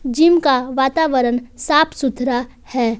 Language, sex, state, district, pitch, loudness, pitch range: Hindi, female, Jharkhand, Palamu, 265 Hz, -17 LUFS, 250-300 Hz